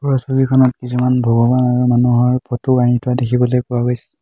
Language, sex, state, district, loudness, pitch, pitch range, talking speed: Assamese, male, Assam, Hailakandi, -15 LUFS, 125 Hz, 120-125 Hz, 170 wpm